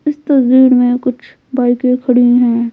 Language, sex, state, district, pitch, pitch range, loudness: Hindi, female, Bihar, Patna, 250 Hz, 245-260 Hz, -11 LUFS